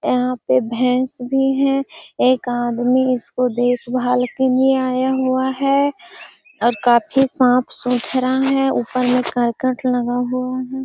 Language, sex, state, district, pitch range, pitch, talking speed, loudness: Hindi, female, Bihar, Gaya, 245-265 Hz, 255 Hz, 135 wpm, -18 LUFS